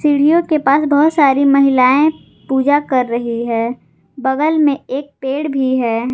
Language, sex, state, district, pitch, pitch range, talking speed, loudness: Hindi, female, Jharkhand, Garhwa, 275 Hz, 255-295 Hz, 155 wpm, -14 LUFS